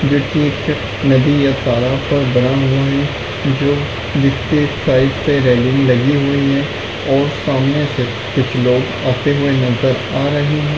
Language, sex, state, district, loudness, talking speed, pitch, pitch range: Hindi, male, Chhattisgarh, Raigarh, -15 LUFS, 160 wpm, 135 Hz, 125-145 Hz